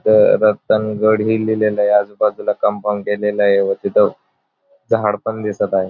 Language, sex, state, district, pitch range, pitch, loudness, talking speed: Marathi, male, Maharashtra, Dhule, 105-110 Hz, 105 Hz, -16 LUFS, 120 wpm